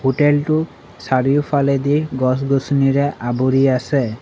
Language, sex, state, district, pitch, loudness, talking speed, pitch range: Assamese, male, Assam, Sonitpur, 135 Hz, -17 LUFS, 70 wpm, 130-145 Hz